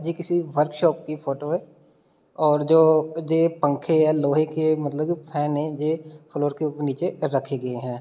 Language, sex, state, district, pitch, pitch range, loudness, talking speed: Hindi, male, Bihar, Muzaffarpur, 155 Hz, 145-160 Hz, -23 LUFS, 180 wpm